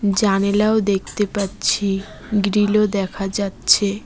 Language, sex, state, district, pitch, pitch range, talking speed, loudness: Bengali, female, West Bengal, Cooch Behar, 200 Hz, 195-210 Hz, 90 wpm, -19 LUFS